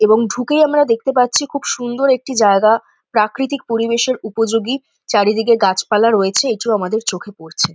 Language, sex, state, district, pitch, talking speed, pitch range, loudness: Bengali, female, West Bengal, North 24 Parganas, 230 Hz, 155 wpm, 210-255 Hz, -16 LUFS